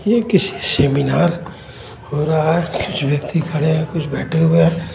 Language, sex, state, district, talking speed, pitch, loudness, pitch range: Hindi, male, Jharkhand, Ranchi, 170 wpm, 160 Hz, -17 LUFS, 145-170 Hz